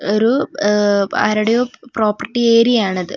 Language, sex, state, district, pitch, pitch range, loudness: Malayalam, female, Kerala, Wayanad, 215 Hz, 205-235 Hz, -16 LUFS